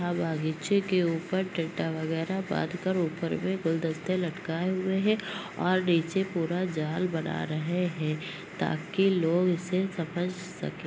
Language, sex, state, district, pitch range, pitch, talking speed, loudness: Hindi, female, Uttar Pradesh, Ghazipur, 165-185 Hz, 175 Hz, 150 wpm, -29 LUFS